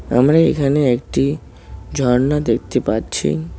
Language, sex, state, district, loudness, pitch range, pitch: Bengali, male, West Bengal, Cooch Behar, -17 LUFS, 90-140 Hz, 125 Hz